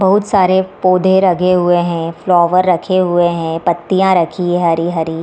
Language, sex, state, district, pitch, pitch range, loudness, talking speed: Hindi, female, Bihar, East Champaran, 180 Hz, 170-185 Hz, -13 LUFS, 185 wpm